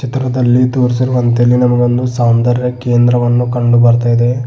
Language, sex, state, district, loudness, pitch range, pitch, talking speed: Kannada, male, Karnataka, Bidar, -12 LUFS, 120-125 Hz, 120 Hz, 120 wpm